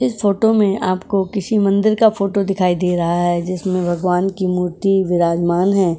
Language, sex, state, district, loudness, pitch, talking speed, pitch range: Hindi, female, Uttar Pradesh, Budaun, -17 LUFS, 185 Hz, 180 wpm, 175-200 Hz